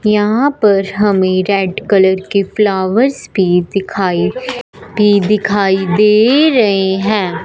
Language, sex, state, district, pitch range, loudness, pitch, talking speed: Hindi, female, Punjab, Fazilka, 190-210 Hz, -12 LUFS, 200 Hz, 115 wpm